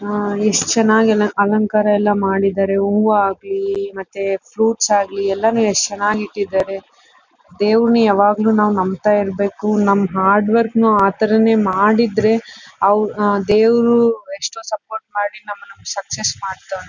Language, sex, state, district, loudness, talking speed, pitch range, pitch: Kannada, female, Karnataka, Bellary, -16 LUFS, 115 wpm, 200-220 Hz, 210 Hz